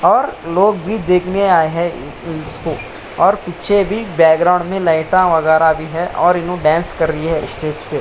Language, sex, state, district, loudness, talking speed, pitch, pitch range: Hindi, male, Bihar, Samastipur, -15 LUFS, 210 wpm, 170 Hz, 160-185 Hz